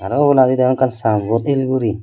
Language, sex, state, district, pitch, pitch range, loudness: Chakma, male, Tripura, Dhalai, 130 Hz, 110-130 Hz, -16 LUFS